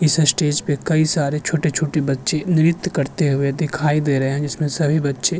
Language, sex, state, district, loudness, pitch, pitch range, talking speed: Hindi, male, Uttarakhand, Tehri Garhwal, -19 LUFS, 150 Hz, 145-155 Hz, 210 wpm